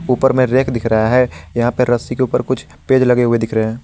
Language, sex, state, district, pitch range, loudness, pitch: Hindi, male, Jharkhand, Garhwa, 115-130 Hz, -15 LUFS, 125 Hz